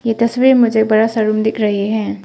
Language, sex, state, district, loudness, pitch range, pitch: Hindi, female, Arunachal Pradesh, Papum Pare, -14 LUFS, 215-230 Hz, 220 Hz